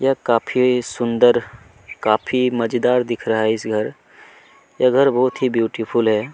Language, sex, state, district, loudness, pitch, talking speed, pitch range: Hindi, male, Chhattisgarh, Kabirdham, -18 LUFS, 120 Hz, 150 wpm, 110-125 Hz